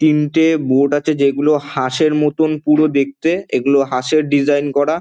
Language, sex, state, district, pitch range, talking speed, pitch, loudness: Bengali, male, West Bengal, Dakshin Dinajpur, 140-155 Hz, 145 wpm, 150 Hz, -15 LUFS